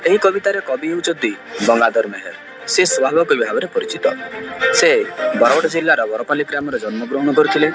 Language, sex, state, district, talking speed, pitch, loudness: Odia, male, Odisha, Malkangiri, 155 wpm, 165 Hz, -17 LUFS